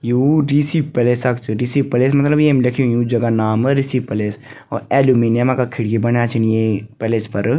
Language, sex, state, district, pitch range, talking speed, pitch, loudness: Garhwali, female, Uttarakhand, Tehri Garhwal, 115-135 Hz, 190 wpm, 120 Hz, -16 LUFS